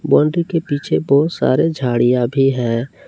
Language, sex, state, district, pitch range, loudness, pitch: Hindi, male, Jharkhand, Palamu, 125-160 Hz, -16 LUFS, 140 Hz